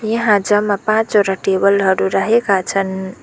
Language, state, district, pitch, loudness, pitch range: Nepali, West Bengal, Darjeeling, 200 Hz, -15 LUFS, 195-210 Hz